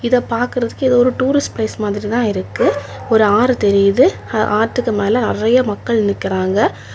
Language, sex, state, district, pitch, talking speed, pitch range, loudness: Tamil, female, Tamil Nadu, Kanyakumari, 220 Hz, 145 wpm, 205-245 Hz, -16 LUFS